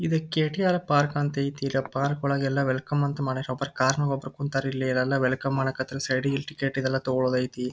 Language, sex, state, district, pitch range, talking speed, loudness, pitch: Kannada, male, Karnataka, Dharwad, 130-145 Hz, 185 wpm, -26 LUFS, 135 Hz